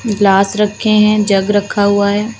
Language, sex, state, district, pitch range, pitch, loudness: Hindi, female, Uttar Pradesh, Lucknow, 200-210 Hz, 205 Hz, -12 LUFS